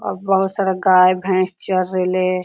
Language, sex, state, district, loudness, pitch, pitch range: Hindi, female, Jharkhand, Sahebganj, -17 LUFS, 185 Hz, 185-190 Hz